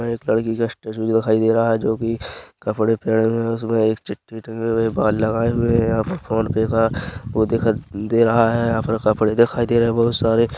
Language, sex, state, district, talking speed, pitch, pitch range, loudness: Hindi, male, Chhattisgarh, Korba, 250 wpm, 115 Hz, 110-115 Hz, -19 LUFS